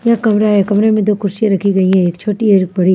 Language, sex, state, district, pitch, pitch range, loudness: Hindi, female, Maharashtra, Mumbai Suburban, 205 Hz, 190-215 Hz, -13 LUFS